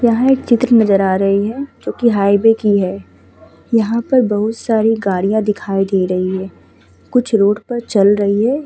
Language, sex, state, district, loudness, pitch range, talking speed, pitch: Hindi, female, Uttar Pradesh, Muzaffarnagar, -15 LUFS, 195-235 Hz, 185 wpm, 210 Hz